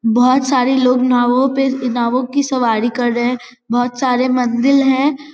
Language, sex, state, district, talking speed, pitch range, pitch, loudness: Hindi, female, Bihar, Vaishali, 170 wpm, 245-265 Hz, 255 Hz, -15 LUFS